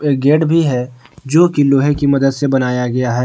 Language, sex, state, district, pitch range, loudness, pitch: Hindi, male, Jharkhand, Garhwa, 125-145 Hz, -14 LUFS, 135 Hz